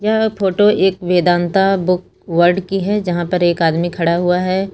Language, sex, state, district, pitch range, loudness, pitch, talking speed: Hindi, female, Uttar Pradesh, Lucknow, 175-195 Hz, -15 LUFS, 180 Hz, 190 wpm